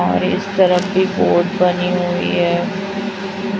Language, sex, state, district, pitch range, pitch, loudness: Hindi, female, Chhattisgarh, Raipur, 180-195 Hz, 185 Hz, -17 LUFS